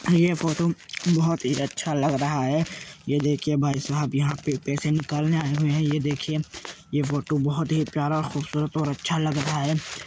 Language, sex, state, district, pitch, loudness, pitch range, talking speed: Hindi, male, Uttar Pradesh, Jyotiba Phule Nagar, 150 Hz, -25 LUFS, 145-155 Hz, 185 wpm